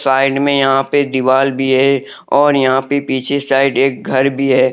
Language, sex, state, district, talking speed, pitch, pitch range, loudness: Hindi, male, Jharkhand, Deoghar, 205 wpm, 135 Hz, 130-140 Hz, -14 LUFS